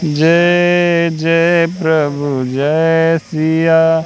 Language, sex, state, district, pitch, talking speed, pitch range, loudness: Hindi, male, Madhya Pradesh, Katni, 165 Hz, 75 wpm, 155-170 Hz, -13 LUFS